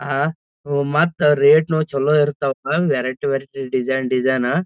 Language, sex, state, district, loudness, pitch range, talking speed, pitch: Kannada, male, Karnataka, Gulbarga, -18 LUFS, 130-150 Hz, 155 wpm, 140 Hz